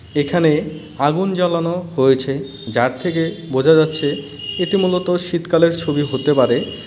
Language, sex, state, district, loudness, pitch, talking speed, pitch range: Bengali, male, West Bengal, Cooch Behar, -17 LUFS, 155 Hz, 130 wpm, 140-175 Hz